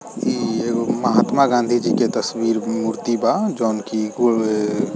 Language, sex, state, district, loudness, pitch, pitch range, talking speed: Bhojpuri, male, Bihar, East Champaran, -19 LUFS, 115 Hz, 110-120 Hz, 145 wpm